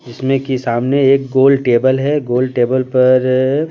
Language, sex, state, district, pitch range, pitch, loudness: Hindi, male, Bihar, Patna, 125-135 Hz, 130 Hz, -14 LUFS